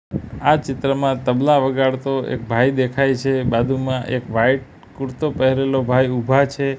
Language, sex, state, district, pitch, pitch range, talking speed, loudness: Gujarati, male, Gujarat, Gandhinagar, 130 Hz, 125-135 Hz, 140 wpm, -19 LUFS